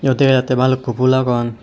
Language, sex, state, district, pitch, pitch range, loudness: Chakma, male, Tripura, West Tripura, 130 Hz, 125-130 Hz, -15 LUFS